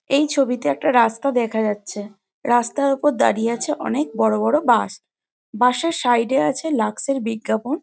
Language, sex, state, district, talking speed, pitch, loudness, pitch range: Bengali, female, West Bengal, Jhargram, 175 wpm, 245 Hz, -20 LUFS, 220-280 Hz